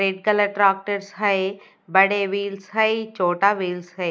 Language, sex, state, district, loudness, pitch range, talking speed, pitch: Hindi, female, Odisha, Nuapada, -21 LUFS, 190-205 Hz, 130 wpm, 200 Hz